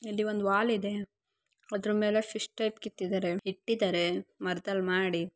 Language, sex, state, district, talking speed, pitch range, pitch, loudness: Kannada, female, Karnataka, Gulbarga, 135 wpm, 185-215 Hz, 200 Hz, -31 LUFS